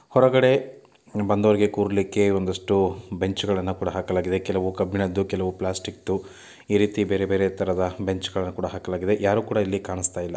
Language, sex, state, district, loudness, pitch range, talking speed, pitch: Kannada, male, Karnataka, Mysore, -24 LUFS, 95-105 Hz, 140 wpm, 95 Hz